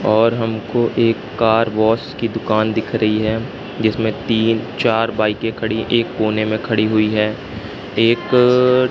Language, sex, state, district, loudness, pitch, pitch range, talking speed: Hindi, male, Madhya Pradesh, Katni, -17 LUFS, 110 Hz, 110-115 Hz, 150 wpm